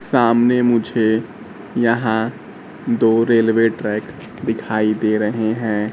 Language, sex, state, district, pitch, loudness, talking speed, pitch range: Hindi, male, Bihar, Kaimur, 110 Hz, -18 LUFS, 100 wpm, 110-115 Hz